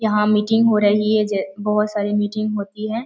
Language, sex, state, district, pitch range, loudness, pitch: Hindi, female, Bihar, Jamui, 205-215 Hz, -19 LUFS, 210 Hz